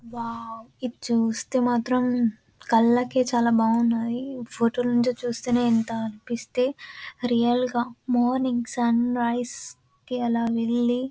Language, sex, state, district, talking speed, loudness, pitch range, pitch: Telugu, female, Andhra Pradesh, Anantapur, 110 wpm, -24 LUFS, 230-245 Hz, 240 Hz